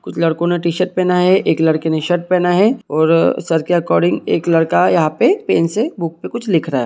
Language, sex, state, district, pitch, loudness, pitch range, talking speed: Hindi, male, Jharkhand, Sahebganj, 170 Hz, -15 LUFS, 165-185 Hz, 245 wpm